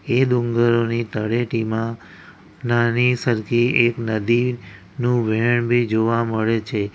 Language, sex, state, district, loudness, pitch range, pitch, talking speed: Gujarati, male, Gujarat, Valsad, -20 LUFS, 110-120 Hz, 115 Hz, 105 wpm